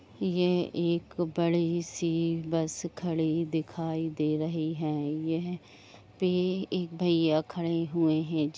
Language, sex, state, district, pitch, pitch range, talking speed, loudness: Hindi, female, Jharkhand, Jamtara, 165 Hz, 160-170 Hz, 120 wpm, -30 LUFS